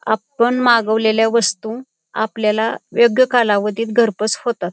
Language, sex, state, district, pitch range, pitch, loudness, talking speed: Marathi, female, Maharashtra, Pune, 215-235 Hz, 225 Hz, -16 LUFS, 100 wpm